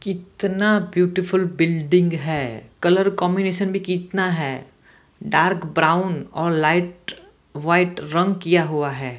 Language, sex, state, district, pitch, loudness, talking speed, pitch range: Hindi, female, Bihar, Gopalganj, 180 Hz, -20 LUFS, 115 wpm, 160-190 Hz